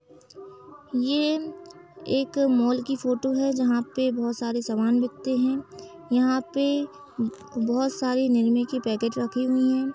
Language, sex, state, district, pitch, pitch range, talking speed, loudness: Hindi, female, Uttar Pradesh, Etah, 260 Hz, 240-285 Hz, 125 wpm, -25 LUFS